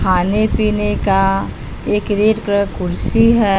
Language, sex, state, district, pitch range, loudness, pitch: Hindi, female, Bihar, West Champaran, 195-215 Hz, -16 LUFS, 205 Hz